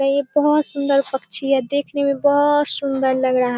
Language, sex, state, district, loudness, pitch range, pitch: Hindi, female, Bihar, Samastipur, -17 LUFS, 265-285 Hz, 280 Hz